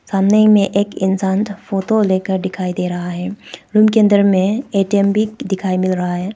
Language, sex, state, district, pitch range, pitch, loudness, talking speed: Hindi, female, Arunachal Pradesh, Papum Pare, 185-210 Hz, 195 Hz, -16 LUFS, 200 wpm